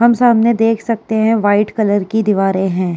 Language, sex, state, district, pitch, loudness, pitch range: Hindi, female, Uttar Pradesh, Jyotiba Phule Nagar, 215 Hz, -14 LUFS, 205-225 Hz